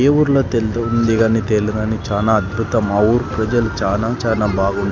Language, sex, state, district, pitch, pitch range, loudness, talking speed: Telugu, male, Andhra Pradesh, Sri Satya Sai, 110 Hz, 105-115 Hz, -17 LUFS, 195 wpm